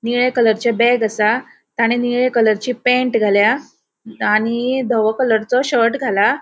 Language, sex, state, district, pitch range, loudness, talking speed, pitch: Konkani, female, Goa, North and South Goa, 220-250 Hz, -16 LUFS, 130 wpm, 235 Hz